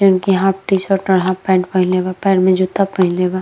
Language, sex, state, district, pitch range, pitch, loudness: Bhojpuri, female, Uttar Pradesh, Gorakhpur, 185-195 Hz, 185 Hz, -15 LUFS